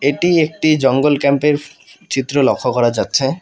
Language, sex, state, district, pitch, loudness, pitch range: Bengali, male, West Bengal, Alipurduar, 140 Hz, -15 LUFS, 135-150 Hz